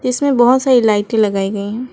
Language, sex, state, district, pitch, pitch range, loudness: Hindi, female, West Bengal, Alipurduar, 235 Hz, 205-255 Hz, -14 LUFS